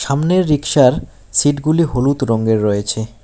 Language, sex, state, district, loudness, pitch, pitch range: Bengali, male, West Bengal, Alipurduar, -15 LUFS, 130 Hz, 110-150 Hz